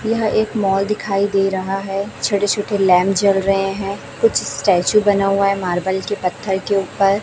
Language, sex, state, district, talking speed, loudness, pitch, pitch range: Hindi, female, Chhattisgarh, Raipur, 190 wpm, -17 LUFS, 195 Hz, 195-205 Hz